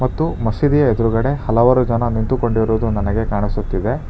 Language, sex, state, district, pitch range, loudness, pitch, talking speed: Kannada, male, Karnataka, Bangalore, 110-130 Hz, -17 LUFS, 115 Hz, 115 wpm